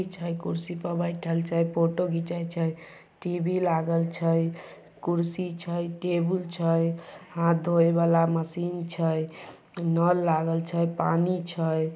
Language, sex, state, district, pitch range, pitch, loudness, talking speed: Maithili, male, Bihar, Samastipur, 165-175 Hz, 170 Hz, -27 LUFS, 110 wpm